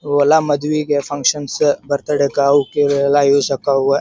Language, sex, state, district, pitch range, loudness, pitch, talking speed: Kannada, male, Karnataka, Dharwad, 140-145 Hz, -16 LUFS, 145 Hz, 150 wpm